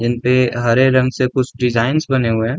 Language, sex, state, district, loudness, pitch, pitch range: Hindi, male, Bihar, Darbhanga, -16 LUFS, 125 Hz, 120-130 Hz